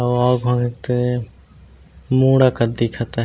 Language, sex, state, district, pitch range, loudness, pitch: Chhattisgarhi, male, Chhattisgarh, Raigarh, 115-125 Hz, -18 LUFS, 120 Hz